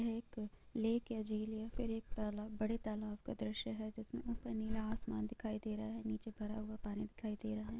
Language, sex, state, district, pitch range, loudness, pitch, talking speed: Hindi, female, Bihar, Gopalganj, 215-225 Hz, -43 LUFS, 215 Hz, 230 wpm